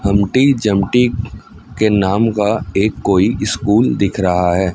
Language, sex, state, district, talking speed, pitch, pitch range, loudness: Hindi, male, Chhattisgarh, Raipur, 140 wpm, 105 Hz, 95-110 Hz, -15 LUFS